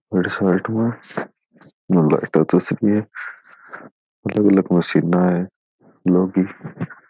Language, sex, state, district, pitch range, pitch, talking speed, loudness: Rajasthani, male, Rajasthan, Churu, 90-105 Hz, 95 Hz, 110 wpm, -19 LUFS